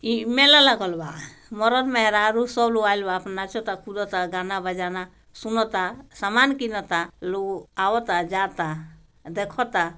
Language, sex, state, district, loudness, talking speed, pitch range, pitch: Bhojpuri, female, Bihar, Gopalganj, -22 LUFS, 120 wpm, 185-230 Hz, 195 Hz